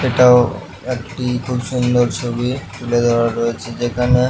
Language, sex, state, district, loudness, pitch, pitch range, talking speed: Bengali, male, West Bengal, Purulia, -17 LUFS, 120 Hz, 120-125 Hz, 125 wpm